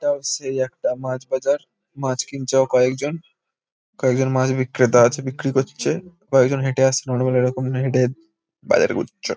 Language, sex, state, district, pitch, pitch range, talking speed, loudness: Bengali, male, West Bengal, Kolkata, 130 Hz, 130-145 Hz, 135 wpm, -20 LUFS